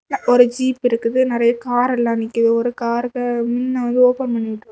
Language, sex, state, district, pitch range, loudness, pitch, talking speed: Tamil, female, Tamil Nadu, Kanyakumari, 235-250 Hz, -18 LUFS, 240 Hz, 175 wpm